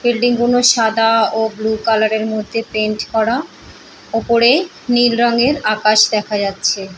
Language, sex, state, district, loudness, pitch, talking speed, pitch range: Bengali, female, West Bengal, Purulia, -15 LUFS, 225 Hz, 145 wpm, 215-240 Hz